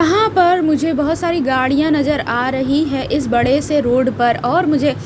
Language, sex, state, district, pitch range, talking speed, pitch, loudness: Hindi, female, Haryana, Rohtak, 260-320 Hz, 215 wpm, 295 Hz, -15 LUFS